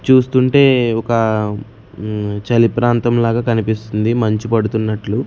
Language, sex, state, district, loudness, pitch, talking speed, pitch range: Telugu, male, Andhra Pradesh, Sri Satya Sai, -15 LUFS, 115 Hz, 100 wpm, 110-120 Hz